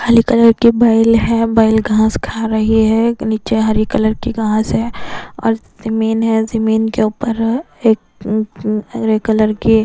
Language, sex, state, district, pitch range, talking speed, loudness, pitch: Hindi, female, Bihar, West Champaran, 220-230 Hz, 150 wpm, -14 LUFS, 225 Hz